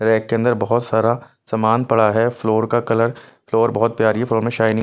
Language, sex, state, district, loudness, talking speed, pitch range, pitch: Hindi, male, Punjab, Pathankot, -18 LUFS, 225 wpm, 110-120 Hz, 115 Hz